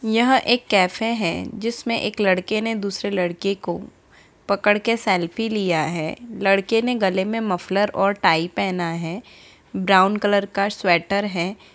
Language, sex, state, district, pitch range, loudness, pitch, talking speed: Hindi, female, Bihar, Samastipur, 185-225 Hz, -21 LUFS, 200 Hz, 155 wpm